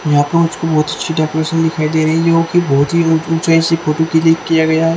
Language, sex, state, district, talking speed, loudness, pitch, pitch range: Hindi, female, Haryana, Charkhi Dadri, 290 wpm, -14 LUFS, 160 Hz, 155-165 Hz